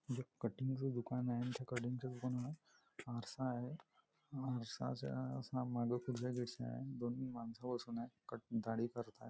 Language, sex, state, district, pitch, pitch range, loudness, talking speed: Marathi, male, Maharashtra, Nagpur, 125 Hz, 115-130 Hz, -44 LUFS, 130 wpm